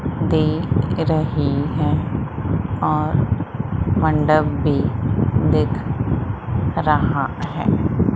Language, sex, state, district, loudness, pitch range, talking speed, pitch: Hindi, female, Madhya Pradesh, Umaria, -20 LUFS, 105-145 Hz, 65 wpm, 120 Hz